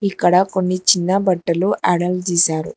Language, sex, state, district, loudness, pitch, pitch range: Telugu, female, Telangana, Hyderabad, -17 LUFS, 180 Hz, 175-185 Hz